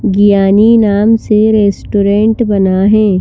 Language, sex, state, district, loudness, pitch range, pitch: Hindi, female, Madhya Pradesh, Bhopal, -9 LUFS, 200-220 Hz, 205 Hz